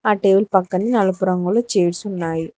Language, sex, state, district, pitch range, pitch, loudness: Telugu, female, Telangana, Hyderabad, 185-210 Hz, 190 Hz, -18 LUFS